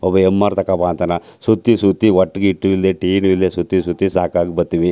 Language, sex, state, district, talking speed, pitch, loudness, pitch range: Kannada, male, Karnataka, Chamarajanagar, 185 wpm, 95 Hz, -16 LUFS, 90-95 Hz